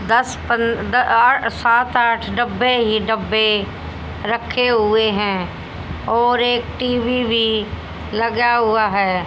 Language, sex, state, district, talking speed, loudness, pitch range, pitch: Hindi, female, Haryana, Jhajjar, 125 wpm, -17 LUFS, 220-240 Hz, 230 Hz